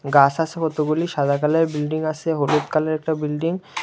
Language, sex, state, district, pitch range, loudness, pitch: Bengali, male, Tripura, Unakoti, 150-160 Hz, -21 LUFS, 155 Hz